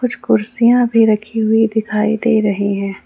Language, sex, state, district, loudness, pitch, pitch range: Hindi, female, Jharkhand, Ranchi, -15 LUFS, 220 Hz, 210-230 Hz